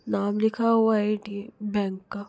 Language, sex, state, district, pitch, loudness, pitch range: Hindi, female, Chhattisgarh, Rajnandgaon, 210 Hz, -25 LUFS, 205-220 Hz